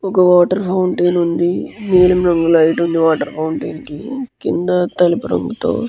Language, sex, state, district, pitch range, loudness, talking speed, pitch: Telugu, male, Andhra Pradesh, Guntur, 170-185 Hz, -15 LUFS, 165 wpm, 175 Hz